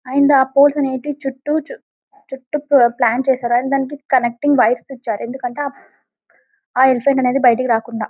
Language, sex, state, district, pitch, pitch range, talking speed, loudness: Telugu, female, Telangana, Karimnagar, 265 Hz, 245-285 Hz, 125 wpm, -16 LUFS